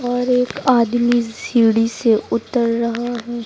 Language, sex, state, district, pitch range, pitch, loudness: Hindi, female, Uttar Pradesh, Lucknow, 230-245 Hz, 235 Hz, -17 LUFS